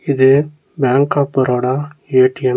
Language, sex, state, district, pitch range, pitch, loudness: Tamil, male, Tamil Nadu, Nilgiris, 130-145 Hz, 135 Hz, -15 LUFS